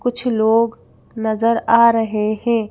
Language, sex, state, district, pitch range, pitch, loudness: Hindi, female, Madhya Pradesh, Bhopal, 220-235 Hz, 230 Hz, -17 LUFS